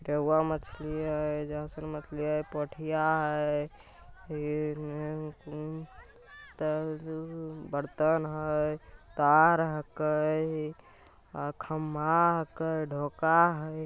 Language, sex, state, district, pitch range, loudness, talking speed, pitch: Magahi, male, Bihar, Jamui, 150-155 Hz, -30 LUFS, 80 wpm, 155 Hz